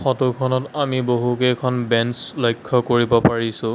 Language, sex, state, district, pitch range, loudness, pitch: Assamese, male, Assam, Sonitpur, 120-130 Hz, -19 LUFS, 125 Hz